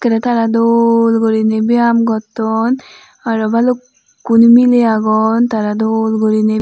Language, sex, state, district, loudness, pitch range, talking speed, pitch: Chakma, female, Tripura, Unakoti, -13 LUFS, 220-235 Hz, 120 wpm, 225 Hz